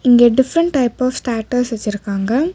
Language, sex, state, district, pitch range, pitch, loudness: Tamil, female, Tamil Nadu, Nilgiris, 230-265 Hz, 245 Hz, -16 LUFS